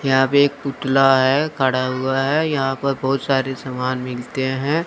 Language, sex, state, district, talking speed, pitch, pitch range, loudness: Hindi, male, Chandigarh, Chandigarh, 185 wpm, 135 Hz, 130-140 Hz, -19 LUFS